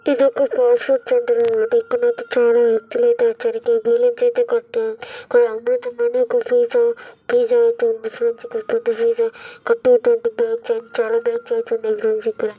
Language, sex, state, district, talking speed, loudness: Telugu, male, Andhra Pradesh, Chittoor, 170 wpm, -18 LUFS